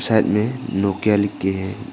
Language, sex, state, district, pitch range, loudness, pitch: Hindi, male, Arunachal Pradesh, Papum Pare, 95-110 Hz, -20 LUFS, 100 Hz